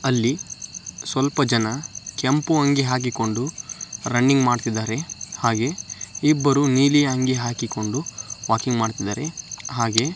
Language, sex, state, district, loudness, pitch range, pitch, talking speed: Kannada, male, Karnataka, Dharwad, -22 LUFS, 115-140 Hz, 125 Hz, 95 wpm